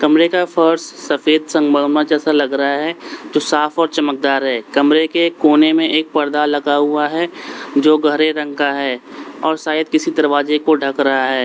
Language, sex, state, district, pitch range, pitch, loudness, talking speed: Hindi, male, Uttar Pradesh, Lalitpur, 145-155 Hz, 150 Hz, -15 LUFS, 190 wpm